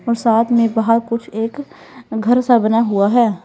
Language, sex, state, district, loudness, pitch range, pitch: Hindi, female, Uttar Pradesh, Lalitpur, -16 LUFS, 225-240 Hz, 230 Hz